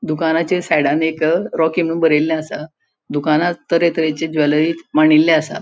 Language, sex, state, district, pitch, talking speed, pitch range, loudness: Konkani, female, Goa, North and South Goa, 160 Hz, 140 wpm, 155-165 Hz, -16 LUFS